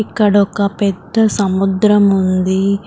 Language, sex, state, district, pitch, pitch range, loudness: Telugu, female, Telangana, Karimnagar, 200 Hz, 190-210 Hz, -14 LUFS